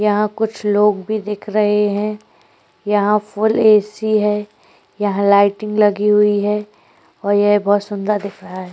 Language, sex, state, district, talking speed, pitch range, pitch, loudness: Hindi, female, Chhattisgarh, Korba, 160 wpm, 205-210 Hz, 210 Hz, -16 LUFS